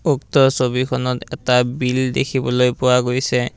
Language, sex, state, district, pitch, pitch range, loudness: Assamese, male, Assam, Kamrup Metropolitan, 125 Hz, 125-130 Hz, -18 LUFS